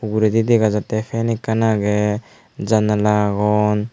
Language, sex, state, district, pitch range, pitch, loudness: Chakma, male, Tripura, Unakoti, 105-110 Hz, 105 Hz, -18 LUFS